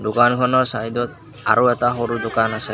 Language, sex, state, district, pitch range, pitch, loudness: Assamese, male, Assam, Kamrup Metropolitan, 115-125 Hz, 120 Hz, -19 LUFS